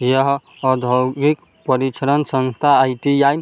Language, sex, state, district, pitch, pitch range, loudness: Hindi, male, Bihar, Vaishali, 135 Hz, 130-140 Hz, -17 LUFS